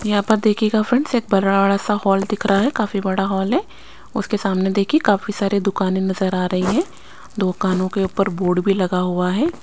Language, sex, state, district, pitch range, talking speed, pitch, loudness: Hindi, female, Chandigarh, Chandigarh, 190-210 Hz, 205 wpm, 195 Hz, -19 LUFS